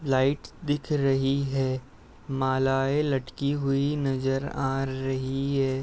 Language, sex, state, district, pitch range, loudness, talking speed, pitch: Hindi, male, Uttar Pradesh, Etah, 130-140 Hz, -27 LUFS, 125 wpm, 135 Hz